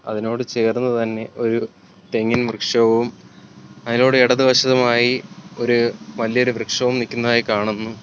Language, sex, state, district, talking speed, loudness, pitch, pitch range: Malayalam, male, Kerala, Kollam, 95 wpm, -18 LUFS, 120 Hz, 115-125 Hz